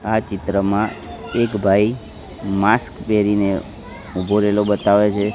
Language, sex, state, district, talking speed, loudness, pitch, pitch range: Gujarati, male, Gujarat, Gandhinagar, 110 wpm, -18 LUFS, 105 Hz, 100-105 Hz